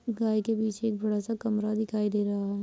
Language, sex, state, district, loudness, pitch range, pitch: Hindi, female, Uttar Pradesh, Muzaffarnagar, -29 LUFS, 210-220 Hz, 215 Hz